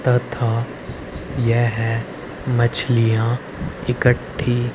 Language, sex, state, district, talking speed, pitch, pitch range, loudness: Hindi, male, Haryana, Rohtak, 50 wpm, 120 Hz, 115-125 Hz, -20 LUFS